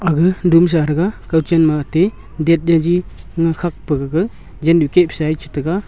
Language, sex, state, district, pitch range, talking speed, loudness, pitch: Wancho, male, Arunachal Pradesh, Longding, 155-175 Hz, 165 wpm, -16 LUFS, 165 Hz